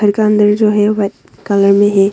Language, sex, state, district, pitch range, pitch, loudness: Hindi, female, Arunachal Pradesh, Longding, 200-210 Hz, 205 Hz, -12 LUFS